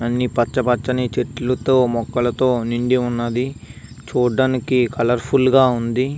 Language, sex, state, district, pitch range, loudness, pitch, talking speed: Telugu, male, Andhra Pradesh, Visakhapatnam, 120-130 Hz, -19 LUFS, 125 Hz, 115 wpm